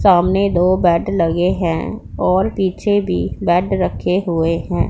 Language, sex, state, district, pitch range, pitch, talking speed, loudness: Hindi, female, Punjab, Pathankot, 170-190 Hz, 180 Hz, 145 wpm, -17 LUFS